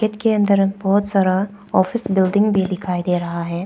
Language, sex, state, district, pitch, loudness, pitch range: Hindi, female, Arunachal Pradesh, Papum Pare, 195 Hz, -18 LUFS, 185-205 Hz